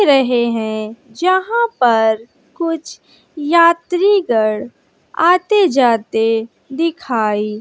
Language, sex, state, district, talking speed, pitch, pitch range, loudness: Hindi, female, Bihar, West Champaran, 70 wpm, 265 Hz, 225-340 Hz, -15 LUFS